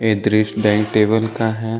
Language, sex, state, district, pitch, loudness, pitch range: Hindi, male, Jharkhand, Deoghar, 110 Hz, -17 LUFS, 105-110 Hz